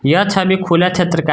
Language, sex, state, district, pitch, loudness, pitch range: Hindi, male, Jharkhand, Garhwa, 180 Hz, -14 LUFS, 165-190 Hz